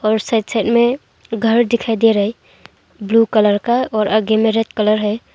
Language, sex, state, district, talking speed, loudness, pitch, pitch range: Hindi, female, Arunachal Pradesh, Longding, 190 wpm, -16 LUFS, 225 Hz, 215-230 Hz